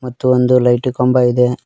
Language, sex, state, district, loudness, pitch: Kannada, male, Karnataka, Koppal, -13 LUFS, 125 Hz